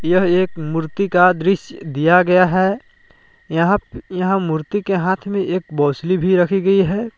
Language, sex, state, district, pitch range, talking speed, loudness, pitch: Hindi, male, Jharkhand, Palamu, 170-195 Hz, 160 wpm, -17 LUFS, 185 Hz